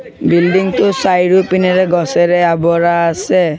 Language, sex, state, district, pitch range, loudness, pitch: Assamese, male, Assam, Sonitpur, 170-185 Hz, -12 LUFS, 175 Hz